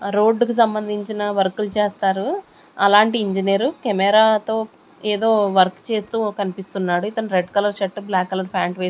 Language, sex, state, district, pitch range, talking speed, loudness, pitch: Telugu, female, Andhra Pradesh, Sri Satya Sai, 195-215 Hz, 130 wpm, -19 LUFS, 205 Hz